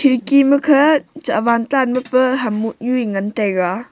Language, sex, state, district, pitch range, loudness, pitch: Wancho, female, Arunachal Pradesh, Longding, 220-275 Hz, -16 LUFS, 250 Hz